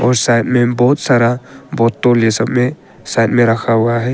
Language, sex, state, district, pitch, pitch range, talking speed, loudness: Hindi, male, Arunachal Pradesh, Papum Pare, 120 Hz, 115-125 Hz, 205 wpm, -13 LUFS